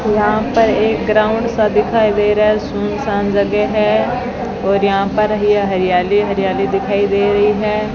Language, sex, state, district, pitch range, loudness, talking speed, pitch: Hindi, female, Rajasthan, Bikaner, 200-215 Hz, -15 LUFS, 165 wpm, 210 Hz